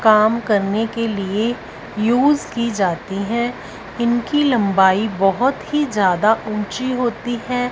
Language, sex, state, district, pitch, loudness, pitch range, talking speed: Hindi, female, Punjab, Fazilka, 225 Hz, -18 LUFS, 205-245 Hz, 125 wpm